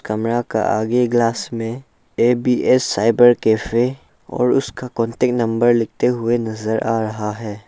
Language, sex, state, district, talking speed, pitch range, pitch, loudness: Hindi, male, Arunachal Pradesh, Lower Dibang Valley, 140 wpm, 110-120 Hz, 115 Hz, -18 LUFS